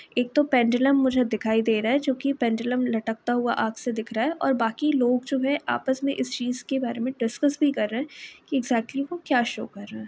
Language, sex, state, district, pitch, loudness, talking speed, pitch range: Hindi, female, Uttar Pradesh, Varanasi, 250 Hz, -25 LUFS, 255 wpm, 230-275 Hz